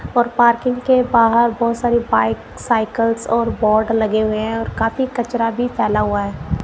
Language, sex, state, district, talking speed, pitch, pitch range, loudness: Hindi, female, Punjab, Kapurthala, 180 wpm, 230 Hz, 215-240 Hz, -17 LUFS